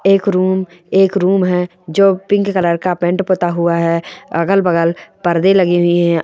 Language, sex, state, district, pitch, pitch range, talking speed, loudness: Hindi, female, Chhattisgarh, Balrampur, 180 Hz, 175-195 Hz, 165 wpm, -14 LUFS